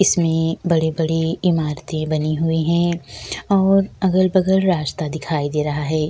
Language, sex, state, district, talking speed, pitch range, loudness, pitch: Hindi, female, Bihar, Kishanganj, 130 wpm, 155-180 Hz, -19 LUFS, 160 Hz